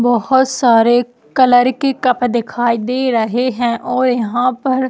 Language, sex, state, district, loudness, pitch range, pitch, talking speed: Hindi, female, Chhattisgarh, Jashpur, -14 LUFS, 240-255 Hz, 245 Hz, 160 wpm